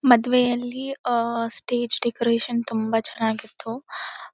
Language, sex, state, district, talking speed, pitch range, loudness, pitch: Kannada, female, Karnataka, Bellary, 95 wpm, 230-245 Hz, -24 LUFS, 235 Hz